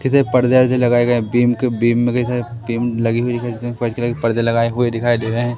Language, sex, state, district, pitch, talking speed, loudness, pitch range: Hindi, male, Madhya Pradesh, Katni, 120 Hz, 290 wpm, -17 LUFS, 115-120 Hz